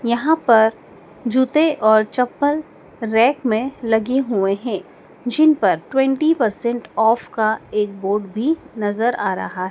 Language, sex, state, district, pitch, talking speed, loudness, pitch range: Hindi, male, Madhya Pradesh, Dhar, 235 Hz, 130 wpm, -18 LUFS, 215-270 Hz